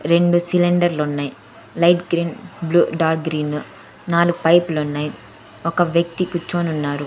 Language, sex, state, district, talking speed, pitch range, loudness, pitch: Telugu, female, Andhra Pradesh, Sri Satya Sai, 125 wpm, 150-175 Hz, -19 LUFS, 170 Hz